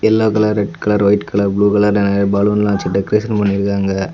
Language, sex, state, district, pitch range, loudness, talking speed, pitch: Tamil, male, Tamil Nadu, Kanyakumari, 100-105 Hz, -15 LUFS, 190 wpm, 100 Hz